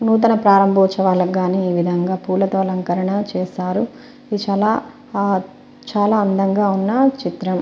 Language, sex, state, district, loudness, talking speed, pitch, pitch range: Telugu, female, Telangana, Nalgonda, -18 LUFS, 110 wpm, 195 Hz, 185-215 Hz